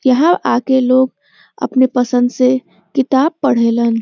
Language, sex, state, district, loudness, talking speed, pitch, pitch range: Bhojpuri, female, Uttar Pradesh, Varanasi, -14 LUFS, 120 wpm, 255 Hz, 245-265 Hz